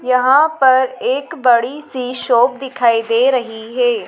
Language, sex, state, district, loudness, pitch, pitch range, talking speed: Hindi, female, Madhya Pradesh, Dhar, -15 LUFS, 255 Hz, 240-280 Hz, 145 wpm